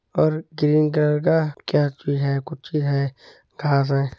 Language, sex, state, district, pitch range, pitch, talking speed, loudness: Hindi, male, Uttar Pradesh, Etah, 140-155 Hz, 150 Hz, 155 wpm, -22 LUFS